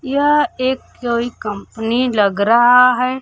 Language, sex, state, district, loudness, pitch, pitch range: Hindi, female, Bihar, Kaimur, -15 LUFS, 245 Hz, 225-255 Hz